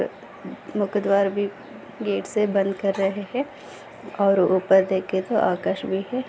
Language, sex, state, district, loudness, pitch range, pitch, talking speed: Hindi, female, Maharashtra, Solapur, -23 LUFS, 190-210 Hz, 200 Hz, 150 wpm